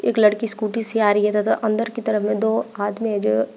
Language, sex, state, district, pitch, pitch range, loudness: Hindi, female, Uttar Pradesh, Shamli, 215 Hz, 205-225 Hz, -19 LUFS